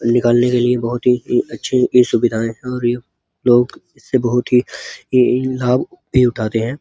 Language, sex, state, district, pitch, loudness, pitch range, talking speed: Hindi, male, Uttar Pradesh, Muzaffarnagar, 125 Hz, -16 LUFS, 120-125 Hz, 175 wpm